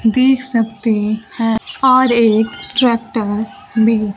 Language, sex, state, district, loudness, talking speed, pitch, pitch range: Hindi, female, Bihar, Kaimur, -15 LUFS, 100 wpm, 225 Hz, 220-250 Hz